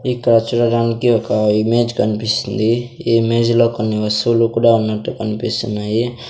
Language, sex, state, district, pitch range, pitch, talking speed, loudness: Telugu, male, Andhra Pradesh, Sri Satya Sai, 110-120 Hz, 115 Hz, 125 wpm, -16 LUFS